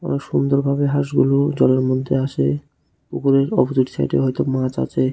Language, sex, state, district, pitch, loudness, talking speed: Bengali, male, Tripura, West Tripura, 130 Hz, -19 LUFS, 150 wpm